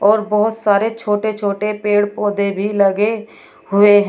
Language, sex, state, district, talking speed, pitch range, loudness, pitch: Hindi, female, Uttar Pradesh, Shamli, 160 wpm, 205-215 Hz, -17 LUFS, 205 Hz